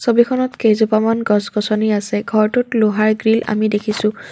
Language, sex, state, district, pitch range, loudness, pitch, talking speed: Assamese, female, Assam, Kamrup Metropolitan, 210-230 Hz, -16 LUFS, 215 Hz, 125 wpm